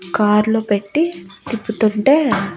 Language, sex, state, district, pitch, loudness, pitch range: Telugu, female, Andhra Pradesh, Annamaya, 215 Hz, -17 LUFS, 200-240 Hz